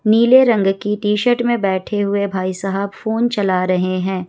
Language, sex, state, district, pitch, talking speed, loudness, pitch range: Hindi, female, Bihar, Kishanganj, 200 Hz, 180 wpm, -17 LUFS, 190-220 Hz